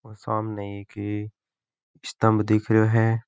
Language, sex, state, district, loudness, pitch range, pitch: Marwari, male, Rajasthan, Nagaur, -24 LUFS, 105-110 Hz, 110 Hz